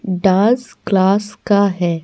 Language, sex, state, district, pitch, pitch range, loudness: Hindi, female, Bihar, Patna, 200 Hz, 185-210 Hz, -16 LUFS